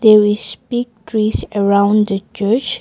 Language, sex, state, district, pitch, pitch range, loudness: English, female, Nagaland, Kohima, 215 Hz, 205-235 Hz, -16 LUFS